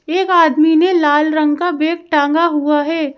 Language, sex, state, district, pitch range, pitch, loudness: Hindi, female, Madhya Pradesh, Bhopal, 300-340 Hz, 315 Hz, -14 LUFS